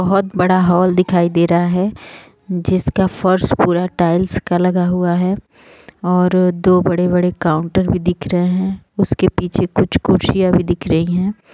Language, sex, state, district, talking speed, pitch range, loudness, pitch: Hindi, female, Bihar, Sitamarhi, 160 wpm, 175-185 Hz, -16 LUFS, 180 Hz